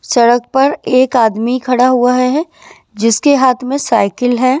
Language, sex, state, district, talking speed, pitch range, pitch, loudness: Hindi, female, Himachal Pradesh, Shimla, 155 wpm, 245-270 Hz, 255 Hz, -12 LUFS